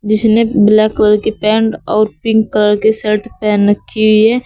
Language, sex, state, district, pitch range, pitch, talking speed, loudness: Hindi, female, Uttar Pradesh, Saharanpur, 210-220 Hz, 215 Hz, 190 wpm, -12 LUFS